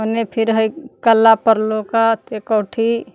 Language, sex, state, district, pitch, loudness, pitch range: Magahi, female, Jharkhand, Palamu, 225 Hz, -16 LUFS, 220-225 Hz